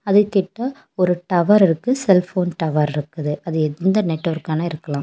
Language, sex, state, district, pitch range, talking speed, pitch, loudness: Tamil, female, Tamil Nadu, Kanyakumari, 155-195 Hz, 130 wpm, 175 Hz, -19 LUFS